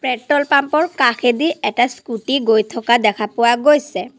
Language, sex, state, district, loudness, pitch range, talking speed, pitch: Assamese, female, Assam, Sonitpur, -16 LUFS, 235-285 Hz, 160 wpm, 250 Hz